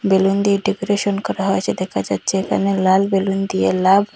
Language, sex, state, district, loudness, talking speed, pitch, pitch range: Bengali, female, Assam, Hailakandi, -18 LUFS, 190 wpm, 195 Hz, 190-200 Hz